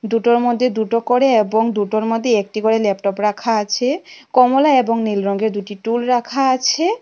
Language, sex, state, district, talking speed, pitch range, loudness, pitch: Bengali, female, Tripura, West Tripura, 170 wpm, 215-250 Hz, -17 LUFS, 230 Hz